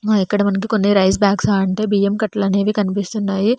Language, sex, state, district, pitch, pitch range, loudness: Telugu, female, Telangana, Hyderabad, 200 Hz, 195-210 Hz, -17 LUFS